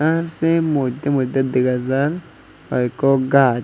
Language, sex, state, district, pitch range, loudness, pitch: Chakma, male, Tripura, Unakoti, 130-155 Hz, -19 LUFS, 135 Hz